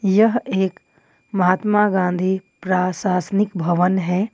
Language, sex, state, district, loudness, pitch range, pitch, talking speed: Hindi, female, Jharkhand, Ranchi, -19 LUFS, 180-205 Hz, 190 Hz, 95 wpm